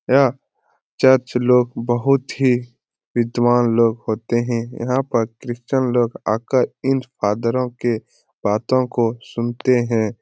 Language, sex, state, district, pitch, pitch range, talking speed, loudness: Hindi, male, Bihar, Lakhisarai, 120 Hz, 115-130 Hz, 125 wpm, -19 LUFS